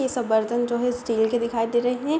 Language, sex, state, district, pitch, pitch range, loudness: Hindi, female, Uttar Pradesh, Deoria, 240 Hz, 230-245 Hz, -23 LUFS